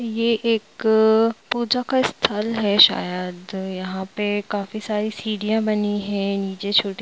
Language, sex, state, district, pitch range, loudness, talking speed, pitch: Hindi, female, Jharkhand, Jamtara, 200-220 Hz, -21 LUFS, 135 wpm, 210 Hz